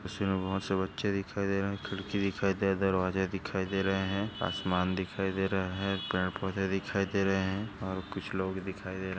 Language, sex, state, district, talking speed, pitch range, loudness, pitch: Hindi, male, Maharashtra, Dhule, 210 wpm, 95-100 Hz, -32 LUFS, 95 Hz